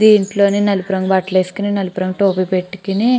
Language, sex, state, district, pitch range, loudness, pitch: Telugu, female, Andhra Pradesh, Chittoor, 185-205 Hz, -16 LUFS, 195 Hz